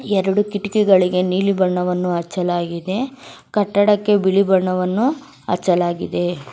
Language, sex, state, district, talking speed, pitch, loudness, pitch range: Kannada, female, Karnataka, Bangalore, 85 wpm, 190 Hz, -18 LUFS, 180-205 Hz